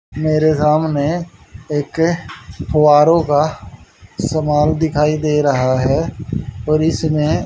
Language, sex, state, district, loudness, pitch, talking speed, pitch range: Hindi, male, Haryana, Rohtak, -16 LUFS, 150 Hz, 95 wpm, 130-155 Hz